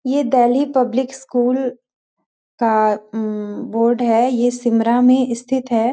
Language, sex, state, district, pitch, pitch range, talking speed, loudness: Hindi, female, Bihar, Sitamarhi, 245 Hz, 230-255 Hz, 130 wpm, -17 LUFS